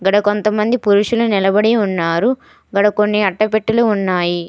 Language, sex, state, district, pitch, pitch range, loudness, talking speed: Telugu, female, Telangana, Hyderabad, 210 Hz, 195-215 Hz, -15 LUFS, 120 wpm